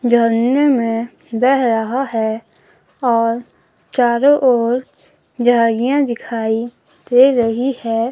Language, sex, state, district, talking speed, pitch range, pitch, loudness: Hindi, female, Himachal Pradesh, Shimla, 95 wpm, 230-255 Hz, 240 Hz, -16 LUFS